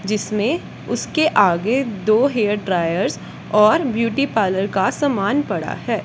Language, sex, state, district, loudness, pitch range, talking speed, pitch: Hindi, female, Punjab, Kapurthala, -19 LUFS, 200-260 Hz, 130 wpm, 215 Hz